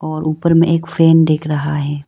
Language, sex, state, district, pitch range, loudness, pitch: Hindi, female, Arunachal Pradesh, Lower Dibang Valley, 150-165 Hz, -14 LUFS, 155 Hz